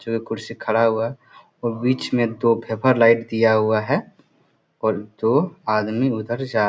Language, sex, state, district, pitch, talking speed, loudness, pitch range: Hindi, male, Bihar, Jamui, 115 Hz, 190 wpm, -21 LUFS, 110-120 Hz